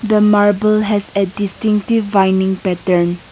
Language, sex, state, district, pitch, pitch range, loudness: English, female, Nagaland, Kohima, 205 Hz, 190-210 Hz, -15 LUFS